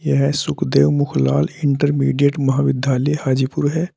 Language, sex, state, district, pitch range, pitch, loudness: Hindi, male, Uttar Pradesh, Saharanpur, 130-145 Hz, 140 Hz, -18 LUFS